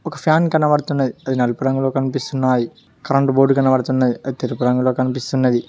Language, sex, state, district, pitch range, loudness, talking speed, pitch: Telugu, male, Telangana, Mahabubabad, 130-135 Hz, -18 LUFS, 145 wpm, 135 Hz